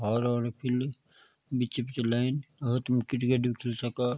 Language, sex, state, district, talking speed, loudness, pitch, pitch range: Garhwali, male, Uttarakhand, Tehri Garhwal, 145 wpm, -30 LUFS, 125 Hz, 120-130 Hz